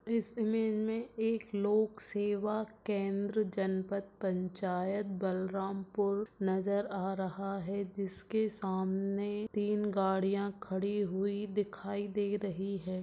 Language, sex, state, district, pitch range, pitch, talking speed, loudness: Hindi, female, Chhattisgarh, Balrampur, 195-210 Hz, 200 Hz, 110 wpm, -35 LUFS